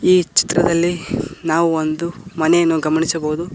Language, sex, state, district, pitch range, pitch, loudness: Kannada, male, Karnataka, Koppal, 160-175 Hz, 165 Hz, -17 LUFS